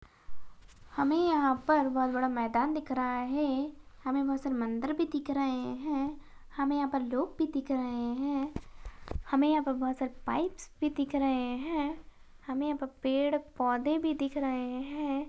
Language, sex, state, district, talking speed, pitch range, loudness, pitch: Hindi, female, Bihar, Jahanabad, 170 wpm, 255-295 Hz, -32 LUFS, 275 Hz